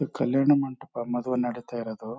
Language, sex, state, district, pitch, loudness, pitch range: Kannada, male, Karnataka, Chamarajanagar, 120 Hz, -27 LUFS, 120-130 Hz